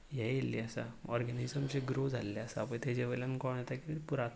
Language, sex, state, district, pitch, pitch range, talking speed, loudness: Konkani, male, Goa, North and South Goa, 125 Hz, 120-135 Hz, 205 wpm, -38 LUFS